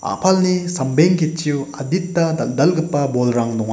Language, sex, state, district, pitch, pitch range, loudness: Garo, male, Meghalaya, West Garo Hills, 160 Hz, 135-175 Hz, -18 LUFS